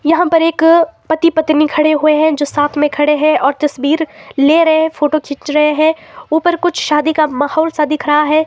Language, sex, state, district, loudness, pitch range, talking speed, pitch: Hindi, female, Himachal Pradesh, Shimla, -13 LUFS, 300-320 Hz, 220 wpm, 305 Hz